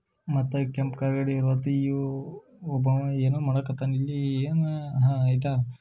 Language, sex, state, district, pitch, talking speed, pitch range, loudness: Kannada, male, Karnataka, Shimoga, 135 Hz, 105 wpm, 135-140 Hz, -27 LUFS